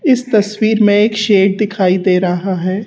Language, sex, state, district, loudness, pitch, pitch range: Hindi, female, Rajasthan, Jaipur, -13 LUFS, 205 Hz, 190-215 Hz